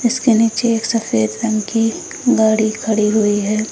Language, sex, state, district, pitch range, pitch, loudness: Hindi, female, Uttar Pradesh, Lucknow, 215-230 Hz, 220 Hz, -16 LUFS